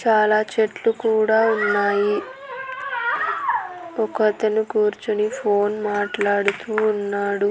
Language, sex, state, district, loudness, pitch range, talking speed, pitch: Telugu, female, Andhra Pradesh, Annamaya, -21 LUFS, 205-225 Hz, 70 wpm, 215 Hz